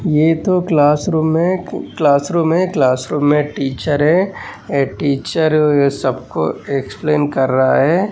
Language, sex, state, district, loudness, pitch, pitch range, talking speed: Hindi, male, Maharashtra, Aurangabad, -15 LUFS, 150 Hz, 140-165 Hz, 120 wpm